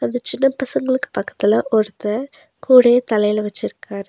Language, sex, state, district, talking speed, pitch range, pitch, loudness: Tamil, female, Tamil Nadu, Nilgiris, 115 wpm, 210-265 Hz, 245 Hz, -17 LUFS